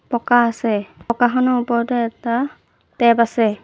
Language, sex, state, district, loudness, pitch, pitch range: Assamese, female, Assam, Sonitpur, -18 LUFS, 235 Hz, 230-245 Hz